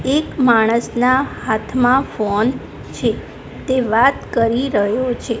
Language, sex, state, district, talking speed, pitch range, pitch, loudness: Gujarati, female, Gujarat, Gandhinagar, 110 wpm, 225-260 Hz, 240 Hz, -17 LUFS